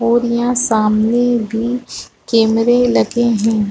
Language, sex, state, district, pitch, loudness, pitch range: Hindi, female, Chhattisgarh, Balrampur, 235 Hz, -15 LUFS, 225-240 Hz